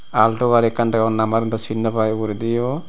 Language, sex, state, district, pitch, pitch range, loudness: Chakma, male, Tripura, Unakoti, 115 Hz, 110-115 Hz, -19 LUFS